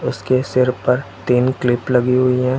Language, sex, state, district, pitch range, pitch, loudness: Hindi, male, Uttar Pradesh, Lucknow, 125-130 Hz, 125 Hz, -17 LUFS